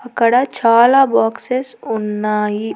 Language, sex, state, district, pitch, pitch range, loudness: Telugu, female, Andhra Pradesh, Annamaya, 230 Hz, 210-250 Hz, -15 LUFS